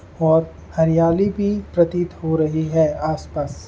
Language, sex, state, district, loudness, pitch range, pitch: Hindi, male, Uttar Pradesh, Etah, -19 LUFS, 160-175 Hz, 160 Hz